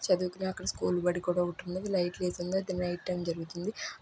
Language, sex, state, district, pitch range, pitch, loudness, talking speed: Telugu, female, Andhra Pradesh, Guntur, 175-185 Hz, 180 Hz, -33 LUFS, 210 wpm